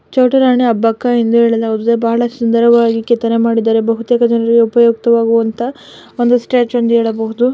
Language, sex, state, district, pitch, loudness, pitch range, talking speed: Kannada, female, Karnataka, Dakshina Kannada, 235 Hz, -12 LUFS, 230-240 Hz, 120 wpm